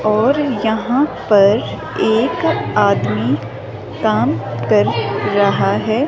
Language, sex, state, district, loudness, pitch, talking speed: Hindi, female, Himachal Pradesh, Shimla, -16 LUFS, 200 Hz, 90 wpm